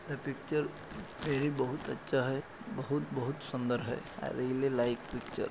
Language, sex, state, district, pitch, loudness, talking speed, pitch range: Hindi, male, Maharashtra, Aurangabad, 135 Hz, -35 LUFS, 140 wpm, 130-145 Hz